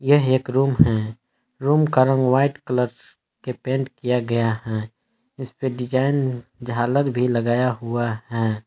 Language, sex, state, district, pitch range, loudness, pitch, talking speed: Hindi, male, Jharkhand, Palamu, 120-135 Hz, -21 LUFS, 125 Hz, 150 wpm